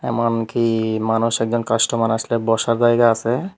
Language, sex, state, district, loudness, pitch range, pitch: Bengali, male, Tripura, Unakoti, -18 LUFS, 115-120 Hz, 115 Hz